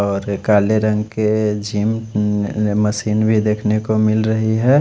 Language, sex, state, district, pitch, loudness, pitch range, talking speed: Hindi, male, Odisha, Khordha, 105 Hz, -17 LUFS, 105-110 Hz, 160 wpm